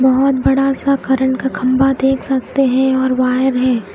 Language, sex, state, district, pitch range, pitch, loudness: Hindi, female, Odisha, Khordha, 260-270 Hz, 265 Hz, -15 LUFS